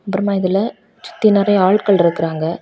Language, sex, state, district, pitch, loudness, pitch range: Tamil, female, Tamil Nadu, Kanyakumari, 195 Hz, -15 LUFS, 175-205 Hz